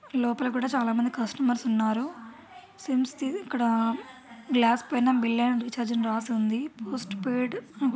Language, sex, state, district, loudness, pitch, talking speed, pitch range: Telugu, female, Telangana, Karimnagar, -27 LUFS, 245 Hz, 115 wpm, 230-260 Hz